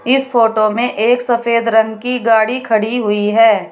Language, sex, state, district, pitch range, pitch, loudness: Hindi, female, Uttar Pradesh, Shamli, 220-245 Hz, 230 Hz, -14 LUFS